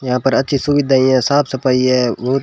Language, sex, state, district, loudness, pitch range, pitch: Hindi, male, Rajasthan, Bikaner, -15 LUFS, 130-135 Hz, 130 Hz